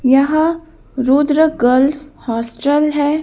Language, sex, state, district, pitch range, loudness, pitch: Hindi, female, Madhya Pradesh, Bhopal, 260-310 Hz, -15 LUFS, 290 Hz